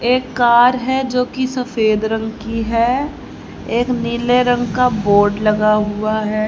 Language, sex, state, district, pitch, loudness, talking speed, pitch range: Hindi, female, Haryana, Rohtak, 235 Hz, -16 LUFS, 150 wpm, 215-250 Hz